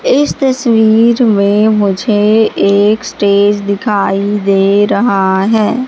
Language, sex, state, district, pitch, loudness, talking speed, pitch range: Hindi, female, Madhya Pradesh, Katni, 210 Hz, -10 LUFS, 100 wpm, 200-225 Hz